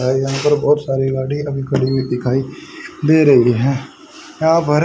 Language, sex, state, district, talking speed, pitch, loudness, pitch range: Hindi, male, Haryana, Rohtak, 185 wpm, 135 Hz, -16 LUFS, 135-150 Hz